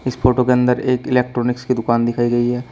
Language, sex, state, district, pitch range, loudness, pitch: Hindi, male, Uttar Pradesh, Shamli, 120-125 Hz, -17 LUFS, 125 Hz